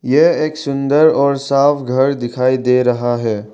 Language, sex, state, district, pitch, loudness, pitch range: Hindi, male, Arunachal Pradesh, Lower Dibang Valley, 135 Hz, -15 LUFS, 125-140 Hz